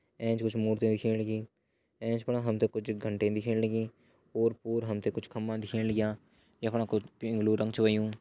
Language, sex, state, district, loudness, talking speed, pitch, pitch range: Hindi, male, Uttarakhand, Uttarkashi, -32 LUFS, 190 wpm, 110 Hz, 110-115 Hz